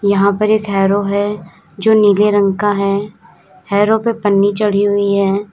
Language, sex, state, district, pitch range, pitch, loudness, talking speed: Hindi, female, Uttar Pradesh, Lalitpur, 195-210 Hz, 200 Hz, -14 LUFS, 175 wpm